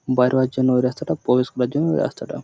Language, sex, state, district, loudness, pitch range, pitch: Bengali, male, West Bengal, Purulia, -20 LUFS, 125-130 Hz, 130 Hz